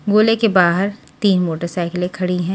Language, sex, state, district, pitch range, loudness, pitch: Hindi, female, Maharashtra, Washim, 175-200 Hz, -17 LUFS, 185 Hz